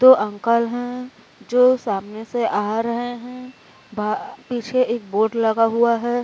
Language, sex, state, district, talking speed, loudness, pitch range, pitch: Hindi, female, Uttar Pradesh, Varanasi, 155 wpm, -20 LUFS, 220-245 Hz, 235 Hz